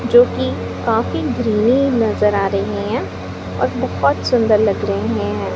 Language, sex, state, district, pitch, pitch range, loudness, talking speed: Hindi, female, Chhattisgarh, Raipur, 225 Hz, 210-245 Hz, -17 LUFS, 150 wpm